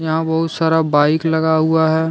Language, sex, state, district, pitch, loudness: Hindi, male, Jharkhand, Deoghar, 160 Hz, -16 LUFS